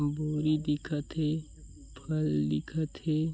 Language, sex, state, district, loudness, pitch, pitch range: Chhattisgarhi, male, Chhattisgarh, Bilaspur, -31 LUFS, 150 Hz, 145-155 Hz